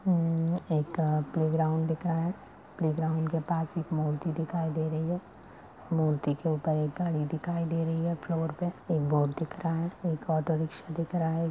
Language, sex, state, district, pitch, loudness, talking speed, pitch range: Hindi, female, Bihar, Madhepura, 165 Hz, -30 LUFS, 140 wpm, 155-170 Hz